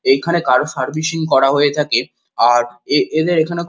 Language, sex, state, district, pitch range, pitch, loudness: Bengali, male, West Bengal, Kolkata, 130-160 Hz, 150 Hz, -16 LUFS